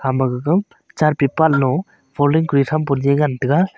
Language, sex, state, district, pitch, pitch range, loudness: Wancho, male, Arunachal Pradesh, Longding, 145 Hz, 135-160 Hz, -17 LUFS